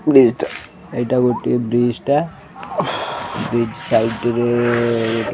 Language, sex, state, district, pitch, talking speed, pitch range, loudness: Odia, male, Odisha, Khordha, 120 Hz, 110 wpm, 115-125 Hz, -18 LUFS